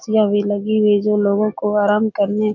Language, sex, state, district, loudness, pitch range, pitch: Hindi, female, Bihar, Jahanabad, -17 LUFS, 205-215 Hz, 210 Hz